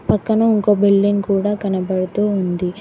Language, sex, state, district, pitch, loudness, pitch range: Telugu, female, Telangana, Hyderabad, 200 Hz, -17 LUFS, 190-205 Hz